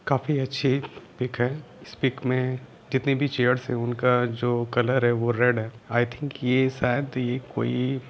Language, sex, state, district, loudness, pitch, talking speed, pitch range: Hindi, male, Jharkhand, Sahebganj, -25 LUFS, 125 Hz, 165 wpm, 120-130 Hz